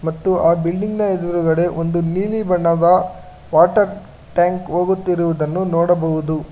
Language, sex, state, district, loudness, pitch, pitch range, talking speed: Kannada, male, Karnataka, Bangalore, -17 LUFS, 175 Hz, 165-185 Hz, 110 wpm